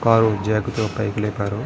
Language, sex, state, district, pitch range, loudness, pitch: Telugu, male, Andhra Pradesh, Srikakulam, 105-115 Hz, -21 LUFS, 110 Hz